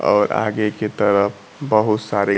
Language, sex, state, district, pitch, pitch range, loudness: Hindi, male, Bihar, Kaimur, 105 Hz, 100-110 Hz, -19 LUFS